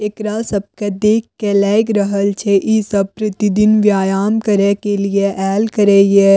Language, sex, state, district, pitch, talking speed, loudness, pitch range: Maithili, female, Bihar, Madhepura, 205 Hz, 160 wpm, -15 LUFS, 200-215 Hz